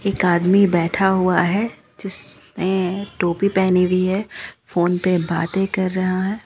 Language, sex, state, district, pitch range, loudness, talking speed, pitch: Hindi, female, Jharkhand, Ranchi, 180-195 Hz, -19 LUFS, 150 wpm, 185 Hz